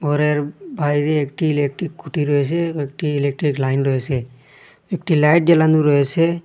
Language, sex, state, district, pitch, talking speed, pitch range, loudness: Bengali, male, Assam, Hailakandi, 145 Hz, 140 wpm, 140-160 Hz, -18 LUFS